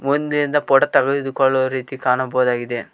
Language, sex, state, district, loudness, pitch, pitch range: Kannada, male, Karnataka, Koppal, -18 LUFS, 135 Hz, 125-140 Hz